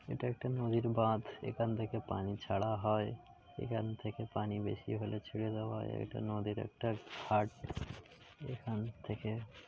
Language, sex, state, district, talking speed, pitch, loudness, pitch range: Bengali, male, West Bengal, Paschim Medinipur, 135 wpm, 110 Hz, -39 LUFS, 105-115 Hz